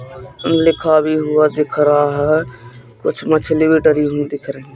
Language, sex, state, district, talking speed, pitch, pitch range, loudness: Hindi, male, Madhya Pradesh, Katni, 165 wpm, 150 Hz, 140-155 Hz, -15 LUFS